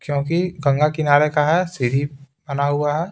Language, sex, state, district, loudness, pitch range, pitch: Hindi, male, Bihar, Patna, -19 LUFS, 140-155 Hz, 145 Hz